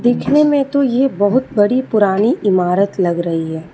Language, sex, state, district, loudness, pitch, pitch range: Hindi, female, Telangana, Hyderabad, -15 LUFS, 210 Hz, 185-260 Hz